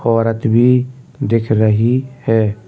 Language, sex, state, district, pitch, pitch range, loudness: Hindi, male, Uttar Pradesh, Jalaun, 115 Hz, 110-125 Hz, -15 LUFS